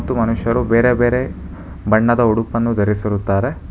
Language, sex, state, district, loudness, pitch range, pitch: Kannada, male, Karnataka, Bangalore, -17 LUFS, 105-120 Hz, 115 Hz